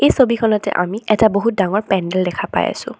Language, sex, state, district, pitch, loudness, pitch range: Assamese, female, Assam, Sonitpur, 205 Hz, -17 LUFS, 190-230 Hz